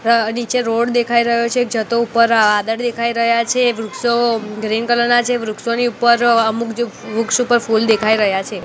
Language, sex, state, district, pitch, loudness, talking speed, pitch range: Gujarati, female, Gujarat, Gandhinagar, 235 Hz, -16 LUFS, 195 wpm, 220-240 Hz